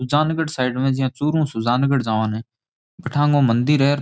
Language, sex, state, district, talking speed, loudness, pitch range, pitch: Rajasthani, male, Rajasthan, Churu, 225 wpm, -20 LUFS, 125-145 Hz, 135 Hz